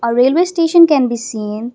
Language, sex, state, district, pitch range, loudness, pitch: English, female, Assam, Kamrup Metropolitan, 235-330 Hz, -13 LUFS, 250 Hz